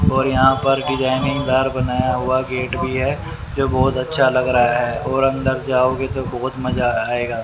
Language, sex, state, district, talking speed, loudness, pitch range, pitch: Hindi, male, Haryana, Rohtak, 175 wpm, -19 LUFS, 125-135 Hz, 130 Hz